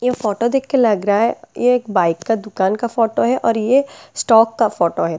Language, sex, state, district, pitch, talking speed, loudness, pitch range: Hindi, female, Delhi, New Delhi, 225 Hz, 245 wpm, -17 LUFS, 205-245 Hz